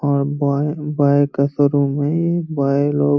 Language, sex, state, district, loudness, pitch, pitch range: Hindi, male, Uttar Pradesh, Hamirpur, -18 LUFS, 145 Hz, 140-145 Hz